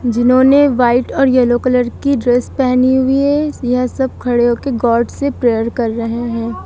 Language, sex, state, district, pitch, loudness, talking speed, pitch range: Hindi, female, Uttar Pradesh, Lucknow, 250 Hz, -14 LUFS, 180 wpm, 240-265 Hz